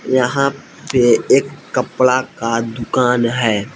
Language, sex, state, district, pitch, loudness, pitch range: Hindi, male, Jharkhand, Palamu, 125 Hz, -16 LUFS, 115-130 Hz